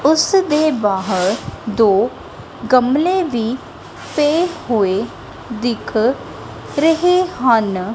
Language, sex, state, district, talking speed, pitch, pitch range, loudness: Punjabi, female, Punjab, Kapurthala, 75 wpm, 245 Hz, 220-315 Hz, -16 LUFS